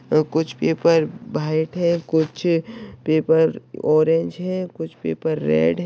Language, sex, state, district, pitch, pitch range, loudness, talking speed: Hindi, male, Uttar Pradesh, Deoria, 160 Hz, 155-170 Hz, -21 LUFS, 135 wpm